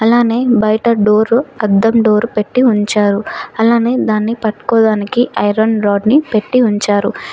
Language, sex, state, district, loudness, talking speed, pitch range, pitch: Telugu, female, Telangana, Mahabubabad, -13 LUFS, 115 wpm, 210-235 Hz, 220 Hz